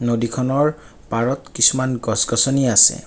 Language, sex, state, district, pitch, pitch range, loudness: Assamese, male, Assam, Kamrup Metropolitan, 125 Hz, 115-135 Hz, -17 LUFS